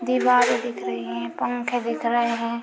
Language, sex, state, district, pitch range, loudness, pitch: Hindi, female, Bihar, Bhagalpur, 230-245 Hz, -23 LUFS, 235 Hz